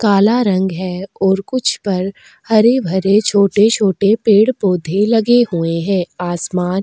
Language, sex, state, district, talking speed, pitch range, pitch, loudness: Hindi, female, Goa, North and South Goa, 125 wpm, 185-215 Hz, 200 Hz, -15 LUFS